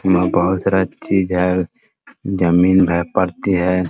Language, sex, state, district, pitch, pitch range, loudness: Hindi, male, Bihar, Muzaffarpur, 90 Hz, 90-95 Hz, -17 LUFS